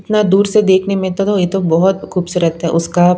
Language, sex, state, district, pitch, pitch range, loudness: Hindi, female, Punjab, Pathankot, 190 Hz, 175-195 Hz, -14 LUFS